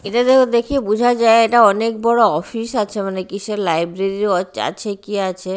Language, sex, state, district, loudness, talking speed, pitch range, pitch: Bengali, female, Odisha, Nuapada, -17 LUFS, 185 wpm, 195-230 Hz, 210 Hz